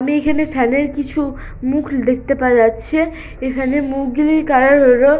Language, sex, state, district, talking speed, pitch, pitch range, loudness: Bengali, female, West Bengal, Purulia, 160 wpm, 275 Hz, 260-295 Hz, -15 LUFS